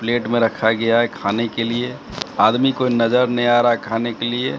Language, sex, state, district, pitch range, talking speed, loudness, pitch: Hindi, male, Bihar, Katihar, 115-120 Hz, 235 wpm, -18 LUFS, 120 Hz